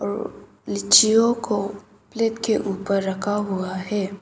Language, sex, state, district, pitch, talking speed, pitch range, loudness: Hindi, female, Arunachal Pradesh, Papum Pare, 200 Hz, 115 wpm, 190-215 Hz, -21 LUFS